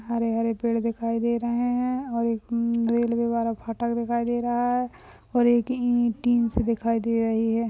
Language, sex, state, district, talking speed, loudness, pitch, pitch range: Hindi, female, Maharashtra, Nagpur, 185 wpm, -25 LUFS, 235 Hz, 230-240 Hz